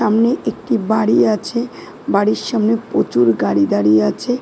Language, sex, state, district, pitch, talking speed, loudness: Bengali, female, West Bengal, Dakshin Dinajpur, 215 Hz, 150 wpm, -16 LUFS